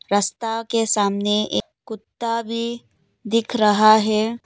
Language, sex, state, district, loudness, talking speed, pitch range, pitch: Hindi, female, Arunachal Pradesh, Lower Dibang Valley, -20 LUFS, 120 wpm, 210-230 Hz, 220 Hz